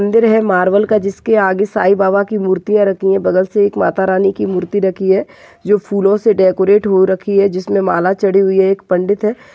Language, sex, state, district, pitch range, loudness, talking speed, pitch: Hindi, male, Maharashtra, Dhule, 190-205 Hz, -13 LUFS, 220 wpm, 195 Hz